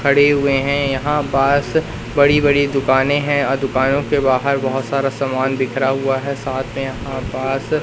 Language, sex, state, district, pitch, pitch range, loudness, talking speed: Hindi, male, Madhya Pradesh, Katni, 135 Hz, 135-140 Hz, -17 LUFS, 185 wpm